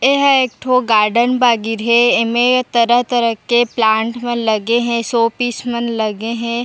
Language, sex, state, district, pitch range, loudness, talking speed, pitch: Chhattisgarhi, female, Chhattisgarh, Raigarh, 230-245 Hz, -15 LUFS, 160 wpm, 235 Hz